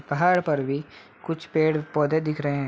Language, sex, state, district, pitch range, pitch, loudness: Hindi, male, Bihar, Muzaffarpur, 145-160 Hz, 150 Hz, -24 LUFS